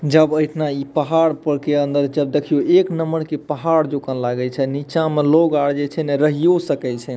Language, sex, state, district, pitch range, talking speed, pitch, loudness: Maithili, male, Bihar, Madhepura, 140-160 Hz, 215 wpm, 150 Hz, -18 LUFS